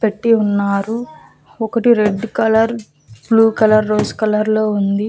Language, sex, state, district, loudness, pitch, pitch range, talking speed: Telugu, female, Andhra Pradesh, Annamaya, -15 LUFS, 215 Hz, 205-225 Hz, 130 wpm